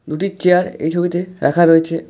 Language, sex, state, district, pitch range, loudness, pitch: Bengali, male, West Bengal, Alipurduar, 165-180 Hz, -16 LUFS, 175 Hz